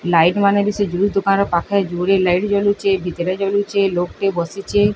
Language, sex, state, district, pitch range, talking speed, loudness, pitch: Odia, female, Odisha, Sambalpur, 180-200 Hz, 170 wpm, -18 LUFS, 195 Hz